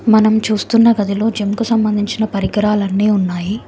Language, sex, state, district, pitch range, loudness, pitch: Telugu, female, Telangana, Hyderabad, 200-220 Hz, -15 LUFS, 210 Hz